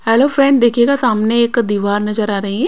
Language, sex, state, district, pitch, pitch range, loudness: Hindi, female, Punjab, Kapurthala, 235 Hz, 210-255 Hz, -14 LUFS